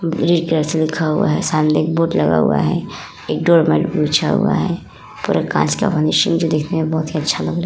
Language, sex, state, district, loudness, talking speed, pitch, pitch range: Hindi, female, Uttar Pradesh, Muzaffarnagar, -17 LUFS, 220 wpm, 160 Hz, 155-165 Hz